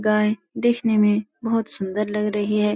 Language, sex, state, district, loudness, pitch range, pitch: Hindi, female, Uttar Pradesh, Etah, -22 LUFS, 210-225 Hz, 210 Hz